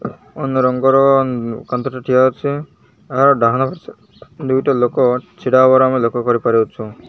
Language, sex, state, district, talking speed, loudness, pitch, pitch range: Odia, male, Odisha, Malkangiri, 125 wpm, -15 LUFS, 130 Hz, 120-135 Hz